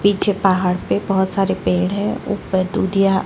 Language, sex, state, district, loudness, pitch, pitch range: Hindi, female, Chhattisgarh, Balrampur, -19 LUFS, 195 Hz, 185-200 Hz